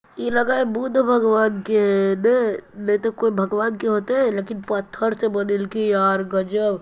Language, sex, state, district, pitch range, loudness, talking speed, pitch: Magahi, male, Bihar, Jamui, 200-225 Hz, -20 LUFS, 185 wpm, 215 Hz